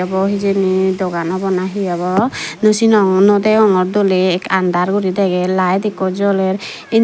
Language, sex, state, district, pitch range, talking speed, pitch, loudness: Chakma, female, Tripura, Dhalai, 185-200 Hz, 160 wpm, 190 Hz, -15 LUFS